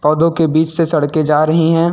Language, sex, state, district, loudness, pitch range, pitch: Hindi, male, Uttar Pradesh, Lucknow, -14 LUFS, 155-165 Hz, 160 Hz